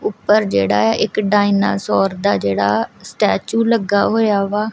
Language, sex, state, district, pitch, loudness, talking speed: Punjabi, female, Punjab, Kapurthala, 200 Hz, -16 LUFS, 140 wpm